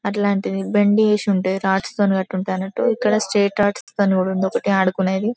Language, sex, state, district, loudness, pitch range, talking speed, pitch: Telugu, female, Telangana, Karimnagar, -19 LUFS, 190-205 Hz, 100 wpm, 195 Hz